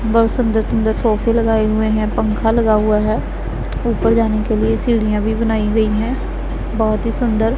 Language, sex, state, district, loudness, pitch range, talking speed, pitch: Hindi, female, Punjab, Pathankot, -17 LUFS, 215-230 Hz, 180 wpm, 220 Hz